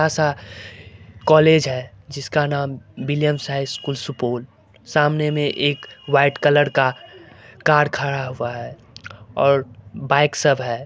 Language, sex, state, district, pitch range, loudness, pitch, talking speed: Hindi, male, Bihar, Supaul, 120-145 Hz, -19 LUFS, 140 Hz, 125 wpm